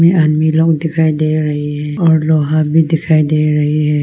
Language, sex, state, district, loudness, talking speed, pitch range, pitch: Hindi, female, Arunachal Pradesh, Longding, -13 LUFS, 210 wpm, 150-160 Hz, 155 Hz